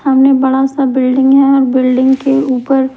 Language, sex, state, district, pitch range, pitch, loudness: Hindi, male, Delhi, New Delhi, 260-270 Hz, 265 Hz, -11 LUFS